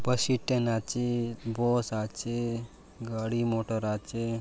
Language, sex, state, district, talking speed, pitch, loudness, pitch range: Halbi, male, Chhattisgarh, Bastar, 110 wpm, 115 Hz, -30 LUFS, 115-120 Hz